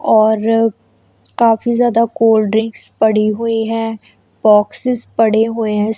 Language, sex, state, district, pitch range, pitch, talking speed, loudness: Hindi, female, Punjab, Kapurthala, 215-230 Hz, 225 Hz, 110 wpm, -14 LUFS